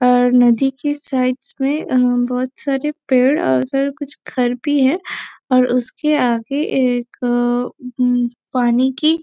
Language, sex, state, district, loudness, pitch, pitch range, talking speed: Hindi, female, Chhattisgarh, Bastar, -17 LUFS, 255 Hz, 245-280 Hz, 150 wpm